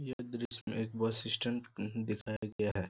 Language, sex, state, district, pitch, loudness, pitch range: Hindi, male, Bihar, Jahanabad, 115 Hz, -37 LUFS, 110-120 Hz